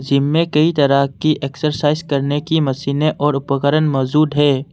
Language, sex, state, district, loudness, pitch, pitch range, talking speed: Hindi, male, Assam, Kamrup Metropolitan, -16 LUFS, 145 Hz, 140-155 Hz, 175 wpm